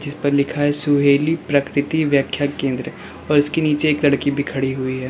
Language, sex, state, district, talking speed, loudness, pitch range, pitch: Hindi, male, Uttar Pradesh, Lalitpur, 190 wpm, -19 LUFS, 140-145 Hz, 145 Hz